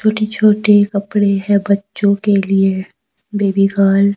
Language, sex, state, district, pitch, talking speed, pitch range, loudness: Hindi, female, Himachal Pradesh, Shimla, 200 Hz, 145 wpm, 195-205 Hz, -14 LUFS